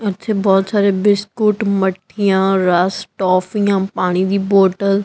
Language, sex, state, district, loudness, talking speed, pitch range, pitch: Punjabi, female, Punjab, Kapurthala, -16 LUFS, 120 wpm, 190-205 Hz, 195 Hz